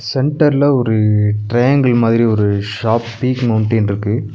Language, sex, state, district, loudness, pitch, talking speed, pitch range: Tamil, male, Tamil Nadu, Nilgiris, -14 LUFS, 115 Hz, 140 wpm, 105-125 Hz